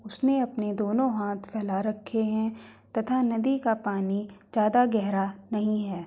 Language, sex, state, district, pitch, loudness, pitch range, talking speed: Hindi, female, Uttar Pradesh, Hamirpur, 215 Hz, -27 LUFS, 205-230 Hz, 150 wpm